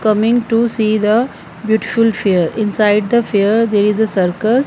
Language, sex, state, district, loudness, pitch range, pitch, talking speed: English, female, Punjab, Fazilka, -14 LUFS, 205-230 Hz, 215 Hz, 165 wpm